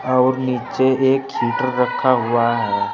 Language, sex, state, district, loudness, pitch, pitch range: Hindi, male, Uttar Pradesh, Saharanpur, -18 LUFS, 130 Hz, 125-135 Hz